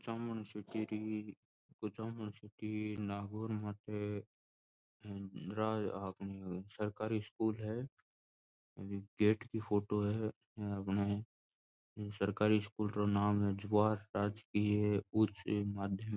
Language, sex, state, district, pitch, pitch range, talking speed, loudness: Marwari, male, Rajasthan, Nagaur, 105 Hz, 100-110 Hz, 95 wpm, -38 LUFS